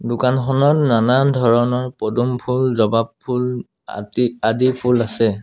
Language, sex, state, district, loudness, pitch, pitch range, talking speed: Assamese, male, Assam, Sonitpur, -18 LUFS, 125 Hz, 115-125 Hz, 120 wpm